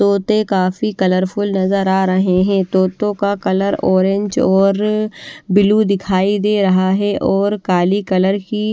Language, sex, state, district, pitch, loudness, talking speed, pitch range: Hindi, female, Haryana, Charkhi Dadri, 195 Hz, -15 LUFS, 145 wpm, 190-205 Hz